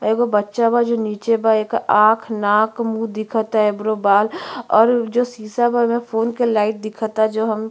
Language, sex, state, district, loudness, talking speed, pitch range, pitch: Bhojpuri, female, Uttar Pradesh, Gorakhpur, -18 LUFS, 195 wpm, 215-230 Hz, 220 Hz